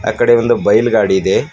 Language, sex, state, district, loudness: Kannada, male, Karnataka, Bidar, -12 LUFS